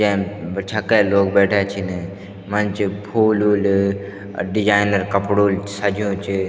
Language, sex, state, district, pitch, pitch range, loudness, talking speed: Garhwali, male, Uttarakhand, Tehri Garhwal, 100 Hz, 100-105 Hz, -19 LUFS, 140 wpm